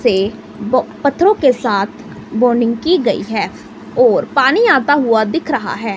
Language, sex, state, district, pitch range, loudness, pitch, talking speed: Hindi, female, Himachal Pradesh, Shimla, 230-330 Hz, -14 LUFS, 260 Hz, 150 wpm